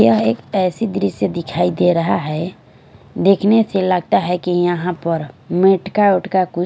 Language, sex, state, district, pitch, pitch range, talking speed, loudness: Hindi, female, Punjab, Fazilka, 175 Hz, 160-190 Hz, 160 wpm, -17 LUFS